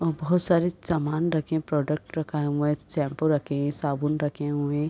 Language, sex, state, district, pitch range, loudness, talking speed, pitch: Hindi, female, Bihar, Sitamarhi, 145-165 Hz, -26 LUFS, 210 wpm, 150 Hz